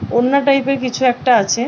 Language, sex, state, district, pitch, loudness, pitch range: Bengali, female, West Bengal, Purulia, 255 Hz, -15 LUFS, 240-275 Hz